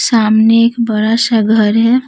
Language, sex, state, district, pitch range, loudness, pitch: Hindi, female, Bihar, Patna, 220-230 Hz, -11 LUFS, 225 Hz